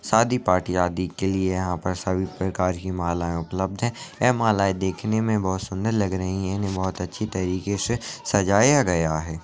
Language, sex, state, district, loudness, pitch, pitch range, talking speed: Hindi, male, Uttar Pradesh, Budaun, -24 LUFS, 95 Hz, 90-105 Hz, 190 wpm